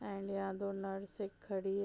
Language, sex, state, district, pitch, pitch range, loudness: Hindi, female, Bihar, Gopalganj, 195 Hz, 195-200 Hz, -40 LUFS